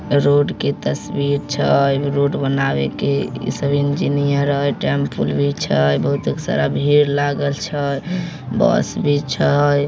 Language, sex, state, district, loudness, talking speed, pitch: Maithili, male, Bihar, Samastipur, -18 LUFS, 120 wpm, 140 Hz